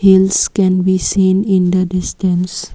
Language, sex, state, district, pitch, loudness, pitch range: English, female, Assam, Kamrup Metropolitan, 185 Hz, -14 LUFS, 185-190 Hz